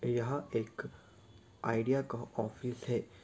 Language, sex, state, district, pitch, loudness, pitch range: Hindi, male, Bihar, Sitamarhi, 115 Hz, -37 LUFS, 110-125 Hz